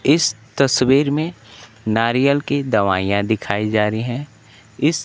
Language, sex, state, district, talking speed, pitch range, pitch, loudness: Hindi, male, Bihar, Kaimur, 130 wpm, 110-140 Hz, 115 Hz, -18 LUFS